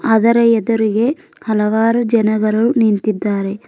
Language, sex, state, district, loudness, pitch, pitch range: Kannada, female, Karnataka, Bidar, -15 LUFS, 225 Hz, 215-230 Hz